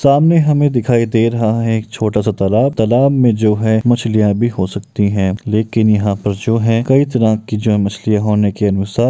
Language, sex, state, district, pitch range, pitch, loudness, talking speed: Maithili, male, Bihar, Muzaffarpur, 105-120 Hz, 110 Hz, -14 LUFS, 215 wpm